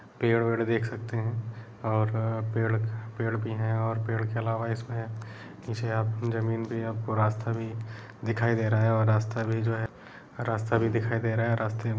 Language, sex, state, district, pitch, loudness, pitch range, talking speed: Kumaoni, male, Uttarakhand, Uttarkashi, 115 Hz, -29 LUFS, 110-115 Hz, 195 wpm